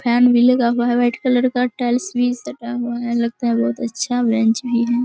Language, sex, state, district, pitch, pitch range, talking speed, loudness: Hindi, female, Bihar, Araria, 240 Hz, 235-245 Hz, 235 wpm, -18 LUFS